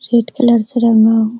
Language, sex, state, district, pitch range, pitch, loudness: Hindi, female, Bihar, Araria, 225-240 Hz, 230 Hz, -12 LUFS